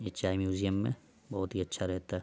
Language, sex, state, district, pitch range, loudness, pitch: Hindi, male, Uttar Pradesh, Ghazipur, 95-100 Hz, -34 LUFS, 95 Hz